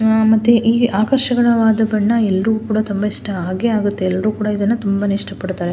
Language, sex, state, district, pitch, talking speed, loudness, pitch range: Kannada, female, Karnataka, Mysore, 215 Hz, 155 wpm, -16 LUFS, 200-225 Hz